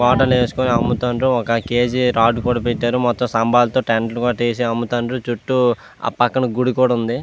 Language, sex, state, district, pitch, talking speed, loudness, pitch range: Telugu, male, Andhra Pradesh, Visakhapatnam, 120 Hz, 165 wpm, -18 LUFS, 120-125 Hz